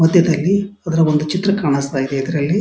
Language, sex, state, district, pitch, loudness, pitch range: Kannada, male, Karnataka, Dharwad, 165 Hz, -17 LUFS, 145-190 Hz